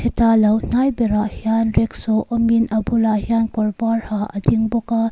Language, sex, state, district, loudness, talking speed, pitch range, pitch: Mizo, female, Mizoram, Aizawl, -18 LUFS, 200 wpm, 215-230 Hz, 225 Hz